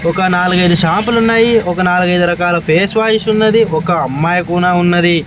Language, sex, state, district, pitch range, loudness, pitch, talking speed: Telugu, male, Andhra Pradesh, Sri Satya Sai, 175-215 Hz, -12 LUFS, 180 Hz, 170 wpm